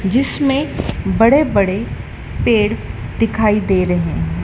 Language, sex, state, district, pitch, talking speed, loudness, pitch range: Hindi, female, Madhya Pradesh, Dhar, 210 Hz, 110 wpm, -16 LUFS, 190-230 Hz